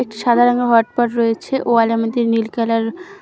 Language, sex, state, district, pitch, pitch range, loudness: Bengali, female, West Bengal, Cooch Behar, 235 Hz, 230-245 Hz, -16 LUFS